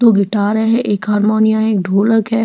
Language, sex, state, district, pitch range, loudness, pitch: Hindi, female, Chhattisgarh, Jashpur, 205-225 Hz, -14 LUFS, 220 Hz